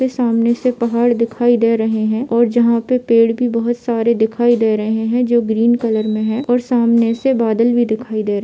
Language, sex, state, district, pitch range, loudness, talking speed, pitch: Hindi, female, Jharkhand, Sahebganj, 225-240 Hz, -15 LUFS, 225 wpm, 235 Hz